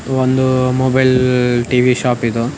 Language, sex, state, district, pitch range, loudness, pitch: Kannada, male, Karnataka, Raichur, 125-130 Hz, -14 LUFS, 125 Hz